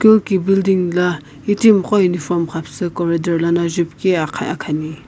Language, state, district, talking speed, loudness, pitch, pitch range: Sumi, Nagaland, Kohima, 130 wpm, -17 LUFS, 175 Hz, 165-190 Hz